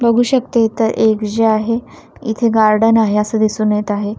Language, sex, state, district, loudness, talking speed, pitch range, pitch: Marathi, female, Maharashtra, Washim, -15 LUFS, 185 wpm, 215-230 Hz, 220 Hz